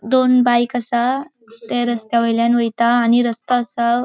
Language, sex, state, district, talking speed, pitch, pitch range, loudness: Konkani, female, Goa, North and South Goa, 160 wpm, 240 Hz, 235-245 Hz, -17 LUFS